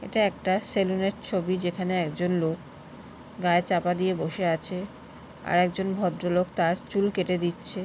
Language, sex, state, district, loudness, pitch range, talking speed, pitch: Bengali, female, West Bengal, Paschim Medinipur, -27 LUFS, 175-190 Hz, 155 wpm, 180 Hz